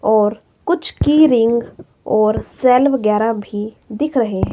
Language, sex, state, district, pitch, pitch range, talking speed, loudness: Hindi, female, Himachal Pradesh, Shimla, 225 Hz, 215-270 Hz, 135 wpm, -16 LUFS